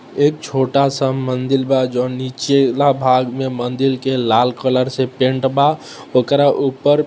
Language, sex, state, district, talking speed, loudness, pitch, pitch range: Maithili, male, Bihar, Samastipur, 160 wpm, -16 LUFS, 130 Hz, 130-140 Hz